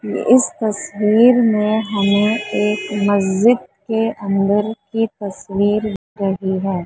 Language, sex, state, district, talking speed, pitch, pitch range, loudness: Hindi, female, Maharashtra, Mumbai Suburban, 115 wpm, 210 Hz, 200-220 Hz, -17 LUFS